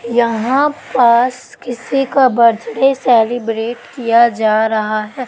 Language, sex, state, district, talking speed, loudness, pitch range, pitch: Hindi, female, Madhya Pradesh, Katni, 115 wpm, -14 LUFS, 225-255 Hz, 235 Hz